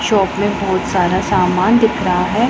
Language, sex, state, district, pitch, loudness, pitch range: Hindi, female, Punjab, Pathankot, 195 Hz, -15 LUFS, 185-205 Hz